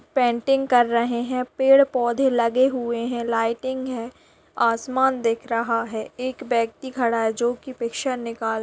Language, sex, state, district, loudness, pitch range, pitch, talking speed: Hindi, female, Bihar, Kishanganj, -22 LUFS, 230-260 Hz, 240 Hz, 155 wpm